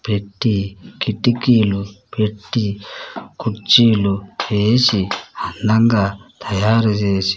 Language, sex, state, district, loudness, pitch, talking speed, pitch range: Telugu, male, Andhra Pradesh, Sri Satya Sai, -17 LUFS, 105 Hz, 75 wpm, 100-110 Hz